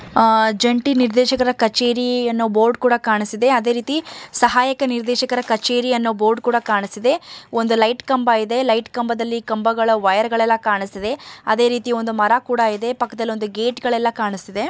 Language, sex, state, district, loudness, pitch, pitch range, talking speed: Kannada, male, Karnataka, Mysore, -18 LUFS, 235 Hz, 220-245 Hz, 150 wpm